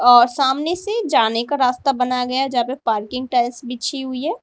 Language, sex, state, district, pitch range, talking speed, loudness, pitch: Hindi, female, Uttar Pradesh, Lalitpur, 245-275 Hz, 205 wpm, -19 LUFS, 255 Hz